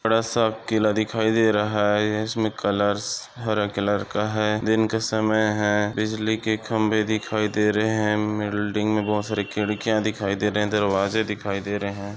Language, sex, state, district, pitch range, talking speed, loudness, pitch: Hindi, male, Maharashtra, Aurangabad, 105-110 Hz, 170 wpm, -23 LUFS, 105 Hz